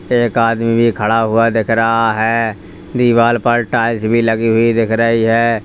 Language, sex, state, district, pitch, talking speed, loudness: Hindi, male, Uttar Pradesh, Lalitpur, 115 Hz, 180 wpm, -14 LUFS